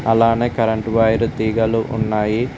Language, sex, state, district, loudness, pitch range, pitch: Telugu, male, Telangana, Mahabubabad, -18 LUFS, 110-115 Hz, 115 Hz